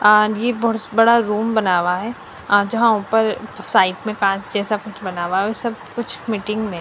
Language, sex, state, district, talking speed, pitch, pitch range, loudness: Hindi, female, Punjab, Fazilka, 200 wpm, 215 Hz, 205-225 Hz, -19 LUFS